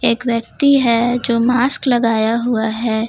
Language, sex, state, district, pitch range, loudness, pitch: Hindi, female, Jharkhand, Ranchi, 230-245 Hz, -15 LUFS, 235 Hz